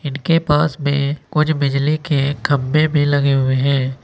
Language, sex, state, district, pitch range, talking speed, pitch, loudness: Hindi, male, Uttar Pradesh, Saharanpur, 140-150 Hz, 165 wpm, 145 Hz, -17 LUFS